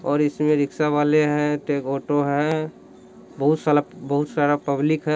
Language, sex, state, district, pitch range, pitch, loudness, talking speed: Hindi, male, Bihar, East Champaran, 145-150 Hz, 150 Hz, -21 LUFS, 150 wpm